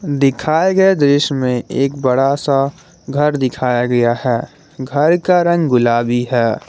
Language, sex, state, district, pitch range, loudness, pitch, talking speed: Hindi, male, Jharkhand, Garhwa, 125-150 Hz, -15 LUFS, 135 Hz, 145 wpm